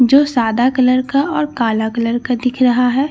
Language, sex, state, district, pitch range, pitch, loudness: Hindi, female, Bihar, Katihar, 240-270 Hz, 250 Hz, -15 LUFS